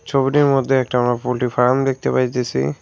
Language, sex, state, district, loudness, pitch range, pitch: Bengali, male, West Bengal, Cooch Behar, -18 LUFS, 125-135 Hz, 125 Hz